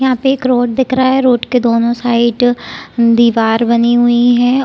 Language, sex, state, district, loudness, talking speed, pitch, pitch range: Hindi, female, Bihar, Saran, -12 LUFS, 195 wpm, 240 Hz, 235-255 Hz